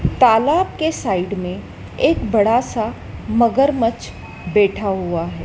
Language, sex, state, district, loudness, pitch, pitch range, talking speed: Hindi, female, Madhya Pradesh, Dhar, -18 LUFS, 215 Hz, 190-240 Hz, 120 wpm